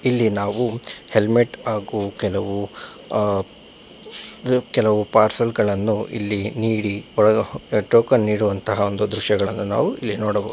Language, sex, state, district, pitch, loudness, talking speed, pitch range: Kannada, male, Karnataka, Bangalore, 105 Hz, -19 LUFS, 115 wpm, 100-110 Hz